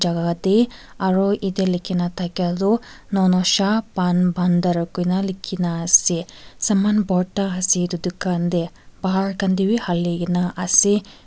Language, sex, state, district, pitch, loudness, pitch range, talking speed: Nagamese, female, Nagaland, Kohima, 185 Hz, -20 LUFS, 175-195 Hz, 125 wpm